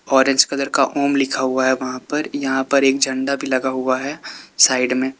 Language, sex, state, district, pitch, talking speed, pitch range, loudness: Hindi, male, Uttar Pradesh, Lalitpur, 135 Hz, 220 wpm, 130-140 Hz, -18 LUFS